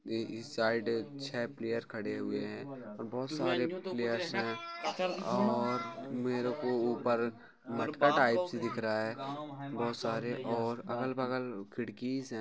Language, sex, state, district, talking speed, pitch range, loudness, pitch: Hindi, male, Chhattisgarh, Raigarh, 140 wpm, 115-130 Hz, -35 LUFS, 120 Hz